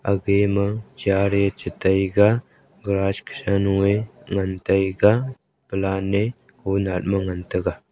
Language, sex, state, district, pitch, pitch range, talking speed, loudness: Wancho, male, Arunachal Pradesh, Longding, 100 Hz, 95-100 Hz, 130 wpm, -22 LUFS